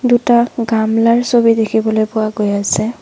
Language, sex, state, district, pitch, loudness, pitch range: Assamese, female, Assam, Sonitpur, 225 Hz, -14 LUFS, 220-235 Hz